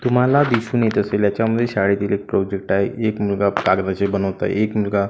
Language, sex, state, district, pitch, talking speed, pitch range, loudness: Marathi, male, Maharashtra, Gondia, 100 Hz, 190 wpm, 100-115 Hz, -19 LUFS